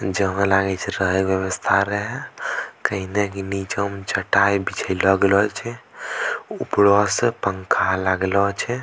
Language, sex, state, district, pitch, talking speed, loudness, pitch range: Angika, male, Bihar, Bhagalpur, 100 Hz, 135 wpm, -21 LUFS, 95-100 Hz